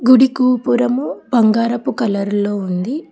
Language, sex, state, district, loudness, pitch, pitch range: Telugu, female, Telangana, Hyderabad, -16 LUFS, 240 Hz, 205-255 Hz